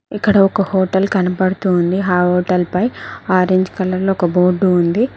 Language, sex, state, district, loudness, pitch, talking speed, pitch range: Telugu, female, Telangana, Mahabubabad, -15 LUFS, 185 Hz, 150 wpm, 180-195 Hz